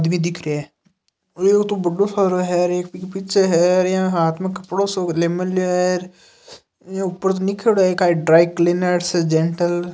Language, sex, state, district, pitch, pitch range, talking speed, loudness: Hindi, male, Rajasthan, Nagaur, 180 Hz, 175-190 Hz, 185 wpm, -18 LUFS